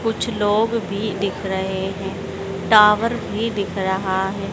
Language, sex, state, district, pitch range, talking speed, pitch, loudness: Hindi, female, Madhya Pradesh, Dhar, 190-215 Hz, 145 wpm, 200 Hz, -20 LUFS